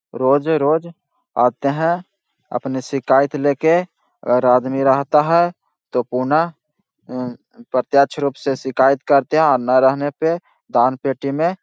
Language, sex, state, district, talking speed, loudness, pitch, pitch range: Hindi, male, Bihar, Jahanabad, 135 wpm, -18 LUFS, 140 Hz, 130-160 Hz